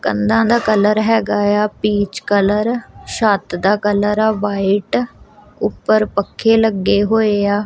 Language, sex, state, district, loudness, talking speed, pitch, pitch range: Punjabi, female, Punjab, Kapurthala, -16 LUFS, 140 wpm, 205 Hz, 200-215 Hz